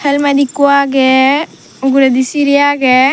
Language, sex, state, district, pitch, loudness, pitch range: Chakma, female, Tripura, Dhalai, 280 Hz, -11 LUFS, 265-285 Hz